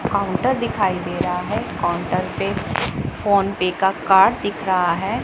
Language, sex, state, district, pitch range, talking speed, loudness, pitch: Hindi, female, Punjab, Pathankot, 180-205 Hz, 160 wpm, -20 LUFS, 190 Hz